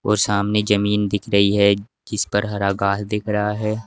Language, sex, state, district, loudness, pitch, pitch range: Hindi, male, Uttar Pradesh, Saharanpur, -20 LUFS, 105 Hz, 100-105 Hz